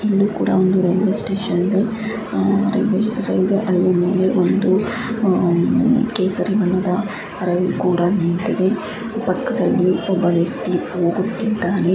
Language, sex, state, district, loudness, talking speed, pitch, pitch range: Kannada, female, Karnataka, Chamarajanagar, -18 LUFS, 115 wpm, 195 Hz, 180-215 Hz